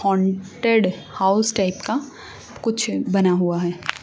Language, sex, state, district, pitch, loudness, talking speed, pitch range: Hindi, female, Haryana, Charkhi Dadri, 195 Hz, -21 LUFS, 120 wpm, 185-220 Hz